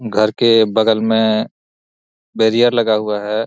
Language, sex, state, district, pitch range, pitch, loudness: Hindi, male, Jharkhand, Jamtara, 110-115 Hz, 110 Hz, -15 LUFS